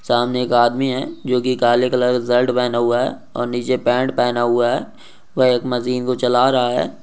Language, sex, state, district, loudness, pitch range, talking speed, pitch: Hindi, male, Rajasthan, Nagaur, -18 LUFS, 120-125 Hz, 215 wpm, 125 Hz